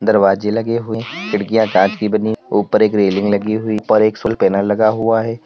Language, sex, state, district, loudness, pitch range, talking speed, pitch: Hindi, male, Uttar Pradesh, Lalitpur, -16 LUFS, 105-110 Hz, 210 wpm, 110 Hz